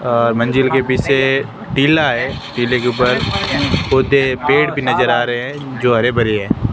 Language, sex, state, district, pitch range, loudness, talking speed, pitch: Hindi, male, Rajasthan, Barmer, 120-135 Hz, -15 LUFS, 180 wpm, 125 Hz